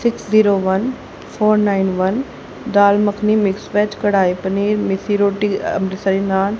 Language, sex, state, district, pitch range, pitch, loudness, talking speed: Hindi, female, Haryana, Rohtak, 195-210 Hz, 200 Hz, -17 LUFS, 145 wpm